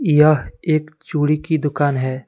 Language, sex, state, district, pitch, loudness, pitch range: Hindi, male, Jharkhand, Deoghar, 150 Hz, -18 LUFS, 145-155 Hz